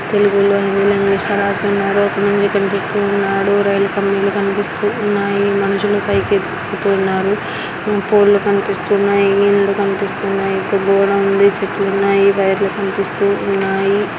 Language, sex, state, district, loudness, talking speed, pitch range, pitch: Telugu, female, Andhra Pradesh, Anantapur, -15 LUFS, 100 wpm, 195-200 Hz, 200 Hz